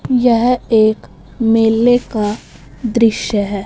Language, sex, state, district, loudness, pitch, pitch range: Hindi, male, Punjab, Fazilka, -14 LUFS, 225 Hz, 215-240 Hz